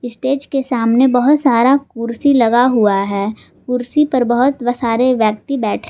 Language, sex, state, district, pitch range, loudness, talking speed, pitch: Hindi, female, Jharkhand, Garhwa, 230-270 Hz, -15 LUFS, 150 wpm, 245 Hz